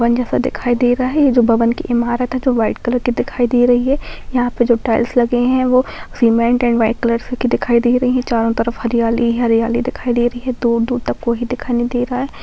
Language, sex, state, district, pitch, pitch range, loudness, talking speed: Hindi, female, Bihar, Muzaffarpur, 245 Hz, 235-250 Hz, -16 LUFS, 255 wpm